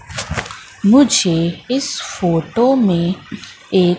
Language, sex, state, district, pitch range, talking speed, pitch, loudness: Hindi, female, Madhya Pradesh, Katni, 170-255 Hz, 75 wpm, 190 Hz, -16 LUFS